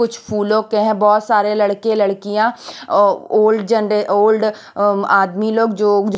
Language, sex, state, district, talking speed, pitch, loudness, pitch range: Hindi, female, Odisha, Khordha, 135 wpm, 210 Hz, -15 LUFS, 205-220 Hz